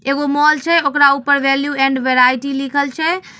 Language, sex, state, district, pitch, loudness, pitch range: Magahi, female, Bihar, Samastipur, 280 Hz, -14 LUFS, 275-290 Hz